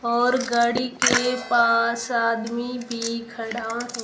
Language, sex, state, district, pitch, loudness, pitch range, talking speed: Hindi, female, Rajasthan, Jaisalmer, 235 Hz, -22 LUFS, 230-245 Hz, 120 wpm